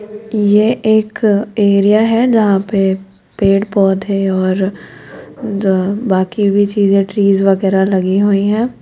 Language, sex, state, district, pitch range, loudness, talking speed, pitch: Hindi, female, Uttar Pradesh, Lucknow, 195-215 Hz, -13 LUFS, 115 wpm, 200 Hz